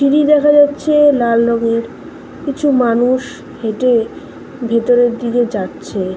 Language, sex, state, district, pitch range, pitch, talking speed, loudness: Bengali, female, West Bengal, Malda, 230-285 Hz, 245 Hz, 95 wpm, -14 LUFS